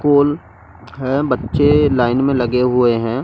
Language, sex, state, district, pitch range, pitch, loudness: Hindi, male, Delhi, New Delhi, 120-145 Hz, 130 Hz, -15 LUFS